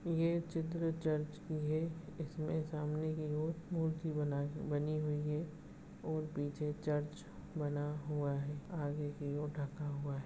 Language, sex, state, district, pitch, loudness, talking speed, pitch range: Hindi, male, Goa, North and South Goa, 155 Hz, -40 LUFS, 150 wpm, 145-160 Hz